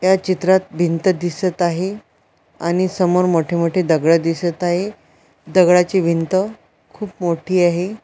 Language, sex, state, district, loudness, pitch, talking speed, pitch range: Marathi, female, Maharashtra, Washim, -17 LUFS, 180 Hz, 125 wpm, 170-185 Hz